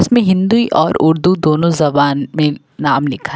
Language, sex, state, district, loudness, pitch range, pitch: Hindi, female, Uttar Pradesh, Lucknow, -14 LUFS, 150-185 Hz, 160 Hz